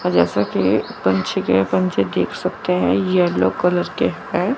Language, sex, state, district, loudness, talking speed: Hindi, female, Chandigarh, Chandigarh, -19 LUFS, 185 wpm